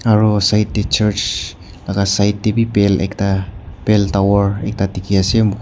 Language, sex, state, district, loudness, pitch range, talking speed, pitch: Nagamese, male, Nagaland, Kohima, -16 LUFS, 100-105 Hz, 105 wpm, 100 Hz